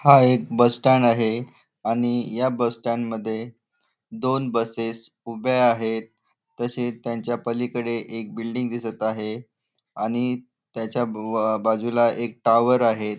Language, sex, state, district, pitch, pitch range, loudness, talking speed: Marathi, male, Maharashtra, Nagpur, 115 Hz, 115-120 Hz, -23 LUFS, 125 wpm